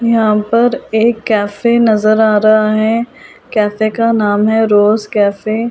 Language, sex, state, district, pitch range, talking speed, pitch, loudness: Hindi, female, Delhi, New Delhi, 210-230 Hz, 155 wpm, 220 Hz, -12 LUFS